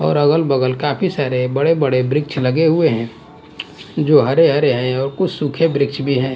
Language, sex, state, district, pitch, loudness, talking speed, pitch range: Hindi, male, Punjab, Fazilka, 145 Hz, -16 LUFS, 180 wpm, 130-155 Hz